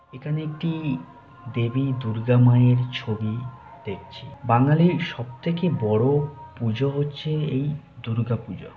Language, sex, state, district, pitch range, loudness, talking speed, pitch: Bengali, male, West Bengal, North 24 Parganas, 120-150 Hz, -23 LUFS, 95 wpm, 135 Hz